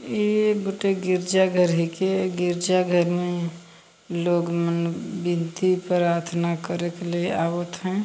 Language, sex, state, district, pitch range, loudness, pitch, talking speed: Hindi, female, Chhattisgarh, Jashpur, 170-185 Hz, -24 LUFS, 175 Hz, 135 wpm